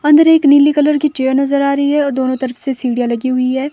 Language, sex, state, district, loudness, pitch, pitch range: Hindi, female, Himachal Pradesh, Shimla, -13 LUFS, 280 Hz, 260-295 Hz